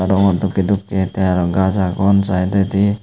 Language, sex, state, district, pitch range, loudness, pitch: Chakma, male, Tripura, Unakoti, 95-100 Hz, -16 LUFS, 95 Hz